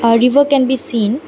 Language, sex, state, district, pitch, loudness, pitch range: English, female, Assam, Kamrup Metropolitan, 255 Hz, -13 LUFS, 230-275 Hz